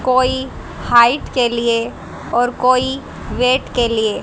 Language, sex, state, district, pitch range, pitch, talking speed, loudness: Hindi, female, Haryana, Jhajjar, 235-255 Hz, 250 Hz, 125 wpm, -16 LUFS